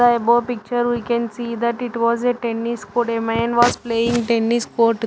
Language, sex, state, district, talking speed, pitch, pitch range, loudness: English, female, Punjab, Fazilka, 215 wpm, 235 Hz, 230-240 Hz, -19 LUFS